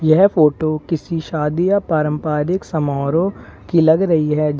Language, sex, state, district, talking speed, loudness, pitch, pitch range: Hindi, male, Uttar Pradesh, Lalitpur, 145 wpm, -17 LUFS, 155 Hz, 150-170 Hz